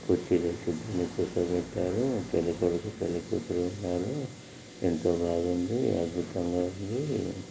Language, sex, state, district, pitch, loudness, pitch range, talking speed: Telugu, male, Telangana, Nalgonda, 90 Hz, -30 LUFS, 85-105 Hz, 95 wpm